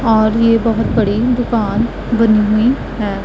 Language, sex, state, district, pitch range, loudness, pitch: Hindi, female, Punjab, Pathankot, 215-230 Hz, -14 LUFS, 225 Hz